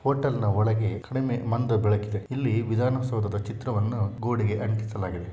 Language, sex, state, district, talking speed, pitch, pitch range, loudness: Kannada, male, Karnataka, Shimoga, 110 wpm, 110 Hz, 105-125 Hz, -27 LUFS